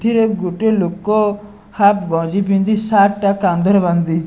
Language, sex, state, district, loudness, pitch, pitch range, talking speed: Odia, male, Odisha, Nuapada, -15 LUFS, 200 Hz, 180-210 Hz, 155 wpm